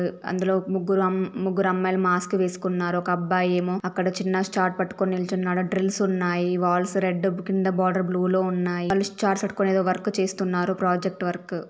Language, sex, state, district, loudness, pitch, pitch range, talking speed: Telugu, female, Andhra Pradesh, Srikakulam, -24 LUFS, 185 Hz, 180-190 Hz, 165 wpm